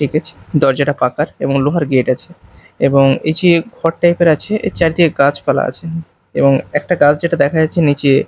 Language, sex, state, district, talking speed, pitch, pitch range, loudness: Bengali, male, Odisha, Malkangiri, 175 wpm, 155 Hz, 140-170 Hz, -14 LUFS